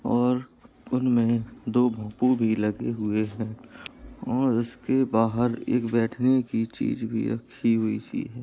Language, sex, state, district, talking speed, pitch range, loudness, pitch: Hindi, male, Uttar Pradesh, Jalaun, 135 wpm, 110-125 Hz, -26 LUFS, 115 Hz